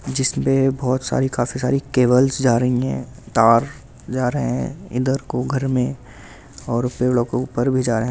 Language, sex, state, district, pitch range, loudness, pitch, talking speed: Hindi, male, Delhi, New Delhi, 120-130 Hz, -20 LUFS, 125 Hz, 185 wpm